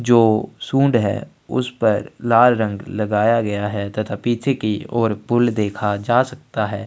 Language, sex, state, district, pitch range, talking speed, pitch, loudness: Hindi, male, Chhattisgarh, Sukma, 105-120 Hz, 155 wpm, 110 Hz, -19 LUFS